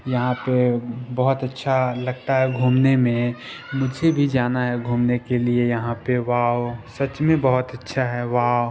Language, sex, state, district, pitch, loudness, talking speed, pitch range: Hindi, male, Bihar, Purnia, 125 Hz, -21 LUFS, 180 wpm, 120-130 Hz